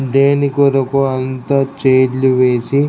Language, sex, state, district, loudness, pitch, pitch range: Telugu, male, Andhra Pradesh, Krishna, -14 LUFS, 135 Hz, 130-140 Hz